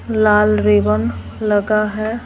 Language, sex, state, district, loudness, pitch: Hindi, female, Bihar, Patna, -16 LUFS, 210 Hz